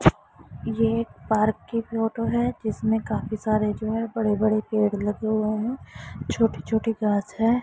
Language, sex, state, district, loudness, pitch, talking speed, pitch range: Hindi, female, Punjab, Pathankot, -25 LUFS, 220 Hz, 165 wpm, 215-225 Hz